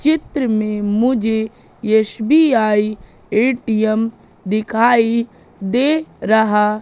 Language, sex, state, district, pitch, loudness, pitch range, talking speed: Hindi, female, Madhya Pradesh, Katni, 220 Hz, -16 LUFS, 215-240 Hz, 80 wpm